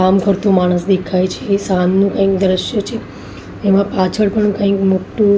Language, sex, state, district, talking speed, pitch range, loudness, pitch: Gujarati, female, Maharashtra, Mumbai Suburban, 155 wpm, 185-200 Hz, -15 LUFS, 195 Hz